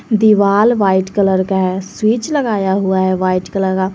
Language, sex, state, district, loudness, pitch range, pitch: Hindi, female, Jharkhand, Garhwa, -14 LUFS, 190-215 Hz, 195 Hz